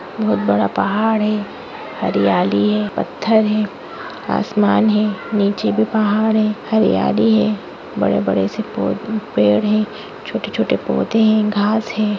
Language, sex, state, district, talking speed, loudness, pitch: Hindi, female, Maharashtra, Nagpur, 135 wpm, -17 LUFS, 210 Hz